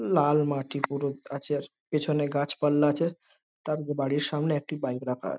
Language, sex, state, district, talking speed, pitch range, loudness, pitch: Bengali, male, West Bengal, Jhargram, 165 wpm, 140-150 Hz, -28 LUFS, 145 Hz